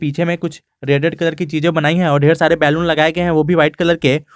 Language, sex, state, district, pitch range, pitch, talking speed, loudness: Hindi, male, Jharkhand, Garhwa, 150-170 Hz, 160 Hz, 290 wpm, -15 LUFS